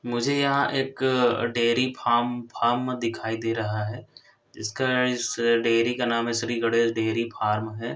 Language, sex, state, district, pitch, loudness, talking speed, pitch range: Hindi, male, Chhattisgarh, Korba, 115 Hz, -25 LUFS, 160 wpm, 115-125 Hz